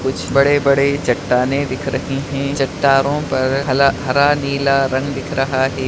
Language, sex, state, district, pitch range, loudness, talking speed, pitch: Hindi, male, Bihar, Madhepura, 130-140 Hz, -16 LUFS, 155 wpm, 135 Hz